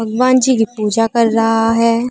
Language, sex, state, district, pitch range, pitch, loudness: Hindi, female, Uttar Pradesh, Muzaffarnagar, 225-235 Hz, 225 Hz, -13 LUFS